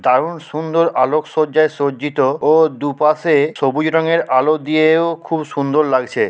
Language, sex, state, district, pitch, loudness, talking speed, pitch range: Bengali, male, West Bengal, Purulia, 155 Hz, -16 LUFS, 135 wpm, 145-160 Hz